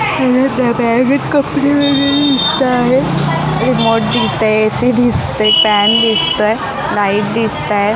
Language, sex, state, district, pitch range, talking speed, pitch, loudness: Marathi, female, Maharashtra, Mumbai Suburban, 215-260 Hz, 130 wpm, 230 Hz, -12 LUFS